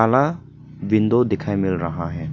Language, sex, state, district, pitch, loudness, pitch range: Hindi, male, Arunachal Pradesh, Papum Pare, 110 Hz, -20 LUFS, 90-135 Hz